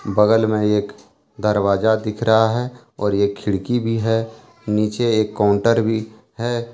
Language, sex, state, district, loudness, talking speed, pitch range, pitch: Hindi, male, Jharkhand, Deoghar, -19 LUFS, 150 wpm, 105-115 Hz, 110 Hz